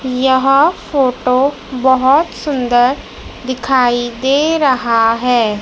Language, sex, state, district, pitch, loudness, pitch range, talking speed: Hindi, female, Madhya Pradesh, Dhar, 260 Hz, -13 LUFS, 245-270 Hz, 85 wpm